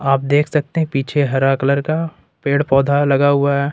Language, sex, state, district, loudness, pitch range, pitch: Hindi, male, Jharkhand, Ranchi, -16 LUFS, 135-145 Hz, 140 Hz